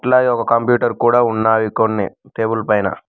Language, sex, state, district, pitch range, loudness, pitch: Telugu, male, Telangana, Mahabubabad, 110-120 Hz, -16 LUFS, 115 Hz